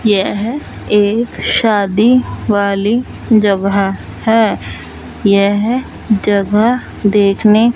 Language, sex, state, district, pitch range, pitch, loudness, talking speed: Hindi, female, Punjab, Fazilka, 200-225 Hz, 210 Hz, -13 LUFS, 70 wpm